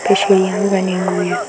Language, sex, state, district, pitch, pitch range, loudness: Hindi, female, Bihar, Gaya, 190 Hz, 190-195 Hz, -15 LUFS